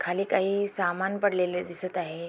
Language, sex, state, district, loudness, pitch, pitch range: Marathi, female, Maharashtra, Aurangabad, -28 LUFS, 185 Hz, 175-195 Hz